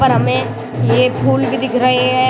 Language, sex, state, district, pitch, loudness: Hindi, male, Uttar Pradesh, Shamli, 130 Hz, -15 LUFS